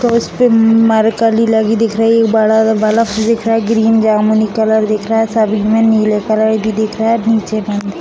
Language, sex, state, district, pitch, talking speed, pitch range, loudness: Hindi, female, Bihar, Sitamarhi, 220 Hz, 225 wpm, 215-225 Hz, -12 LUFS